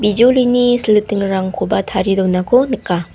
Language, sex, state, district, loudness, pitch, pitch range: Garo, female, Meghalaya, South Garo Hills, -14 LUFS, 210 Hz, 190-245 Hz